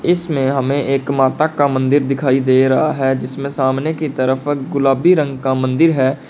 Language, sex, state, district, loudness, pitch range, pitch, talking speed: Hindi, male, Uttar Pradesh, Lalitpur, -16 LUFS, 130-145 Hz, 135 Hz, 180 wpm